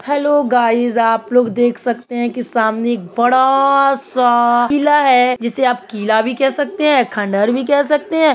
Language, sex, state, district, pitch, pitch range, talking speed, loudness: Hindi, female, Uttar Pradesh, Budaun, 245 Hz, 235-275 Hz, 185 wpm, -14 LUFS